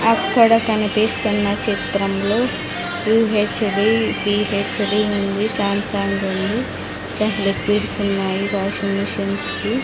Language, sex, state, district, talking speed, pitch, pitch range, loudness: Telugu, female, Andhra Pradesh, Sri Satya Sai, 75 wpm, 205 Hz, 195-215 Hz, -19 LUFS